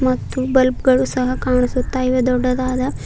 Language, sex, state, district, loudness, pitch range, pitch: Kannada, female, Karnataka, Bidar, -18 LUFS, 255-260 Hz, 255 Hz